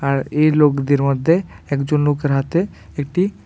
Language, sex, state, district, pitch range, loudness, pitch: Bengali, male, Tripura, West Tripura, 140-155 Hz, -18 LUFS, 145 Hz